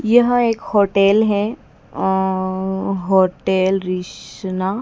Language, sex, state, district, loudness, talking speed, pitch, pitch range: Hindi, female, Madhya Pradesh, Dhar, -18 LUFS, 85 wpm, 190 Hz, 190-210 Hz